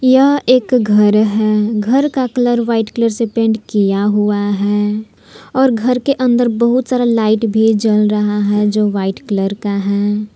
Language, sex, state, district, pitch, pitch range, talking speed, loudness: Hindi, female, Jharkhand, Palamu, 215 Hz, 210-245 Hz, 175 wpm, -14 LUFS